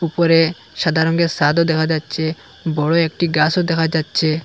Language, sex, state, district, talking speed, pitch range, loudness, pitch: Bengali, male, Assam, Hailakandi, 150 wpm, 155-170 Hz, -17 LUFS, 160 Hz